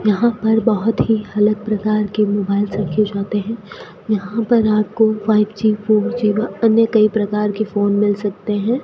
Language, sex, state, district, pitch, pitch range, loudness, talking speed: Hindi, female, Rajasthan, Bikaner, 215 Hz, 205-220 Hz, -17 LUFS, 170 wpm